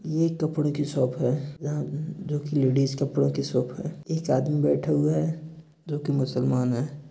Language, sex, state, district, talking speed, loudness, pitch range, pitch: Hindi, male, Bihar, East Champaran, 170 wpm, -26 LUFS, 135-155 Hz, 150 Hz